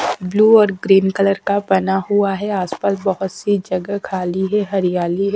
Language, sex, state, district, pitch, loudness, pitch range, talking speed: Hindi, female, Punjab, Kapurthala, 195 Hz, -17 LUFS, 190-200 Hz, 180 wpm